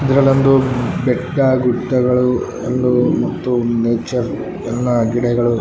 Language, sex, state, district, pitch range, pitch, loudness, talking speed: Kannada, male, Karnataka, Raichur, 120-130 Hz, 125 Hz, -16 LUFS, 95 wpm